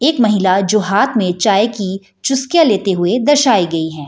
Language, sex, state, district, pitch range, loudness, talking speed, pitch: Hindi, female, Bihar, Jahanabad, 190-260 Hz, -14 LUFS, 190 wpm, 205 Hz